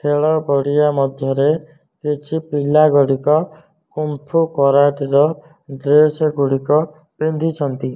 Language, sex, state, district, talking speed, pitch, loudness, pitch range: Odia, male, Odisha, Nuapada, 100 wpm, 150 Hz, -17 LUFS, 140-155 Hz